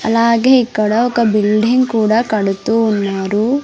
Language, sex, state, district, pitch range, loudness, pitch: Telugu, female, Andhra Pradesh, Sri Satya Sai, 210-240 Hz, -14 LUFS, 225 Hz